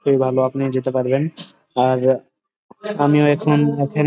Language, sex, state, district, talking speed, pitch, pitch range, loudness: Bengali, male, West Bengal, Dakshin Dinajpur, 135 wpm, 140 Hz, 130-150 Hz, -18 LUFS